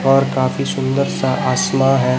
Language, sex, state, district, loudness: Hindi, male, Chhattisgarh, Raipur, -17 LUFS